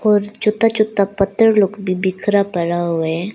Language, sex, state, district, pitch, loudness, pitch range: Hindi, female, Arunachal Pradesh, Lower Dibang Valley, 200 Hz, -17 LUFS, 185-210 Hz